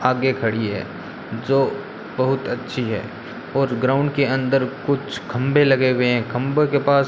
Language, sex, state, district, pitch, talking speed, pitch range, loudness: Hindi, male, Rajasthan, Bikaner, 130 Hz, 170 wpm, 125-135 Hz, -21 LUFS